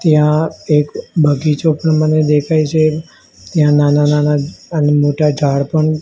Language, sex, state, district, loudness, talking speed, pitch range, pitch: Gujarati, male, Gujarat, Gandhinagar, -14 LUFS, 140 wpm, 145-155 Hz, 150 Hz